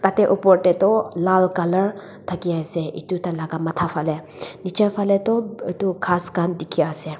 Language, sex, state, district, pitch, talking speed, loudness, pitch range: Nagamese, female, Nagaland, Dimapur, 180 Hz, 165 wpm, -21 LUFS, 165-195 Hz